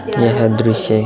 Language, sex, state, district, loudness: Hindi, male, Bihar, Vaishali, -15 LUFS